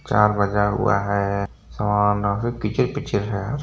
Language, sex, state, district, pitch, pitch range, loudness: Hindi, male, Uttar Pradesh, Varanasi, 105 Hz, 100-105 Hz, -22 LUFS